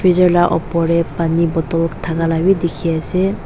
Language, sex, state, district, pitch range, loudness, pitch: Nagamese, female, Nagaland, Dimapur, 165-175 Hz, -16 LUFS, 165 Hz